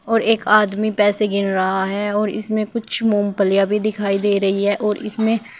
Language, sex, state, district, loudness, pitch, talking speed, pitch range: Hindi, female, Uttar Pradesh, Shamli, -18 LUFS, 210 Hz, 195 wpm, 200-215 Hz